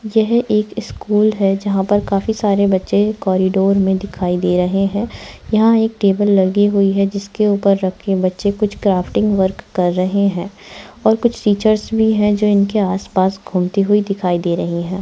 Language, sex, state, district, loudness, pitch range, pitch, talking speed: Hindi, female, Bihar, Araria, -16 LUFS, 190-210 Hz, 200 Hz, 180 wpm